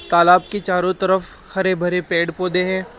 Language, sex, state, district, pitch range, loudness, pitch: Hindi, male, Rajasthan, Jaipur, 180-190 Hz, -18 LUFS, 185 Hz